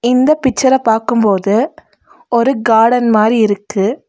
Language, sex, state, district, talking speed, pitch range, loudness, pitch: Tamil, female, Tamil Nadu, Nilgiris, 105 wpm, 215-260 Hz, -13 LUFS, 235 Hz